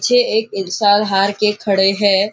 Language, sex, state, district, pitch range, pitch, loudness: Hindi, male, Maharashtra, Nagpur, 195-210 Hz, 205 Hz, -15 LUFS